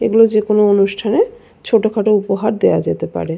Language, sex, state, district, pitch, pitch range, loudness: Bengali, female, West Bengal, Jalpaiguri, 215 Hz, 205-225 Hz, -15 LUFS